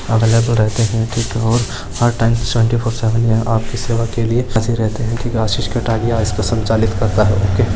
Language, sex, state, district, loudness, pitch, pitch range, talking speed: Hindi, male, Rajasthan, Churu, -16 LUFS, 115 Hz, 110-115 Hz, 145 wpm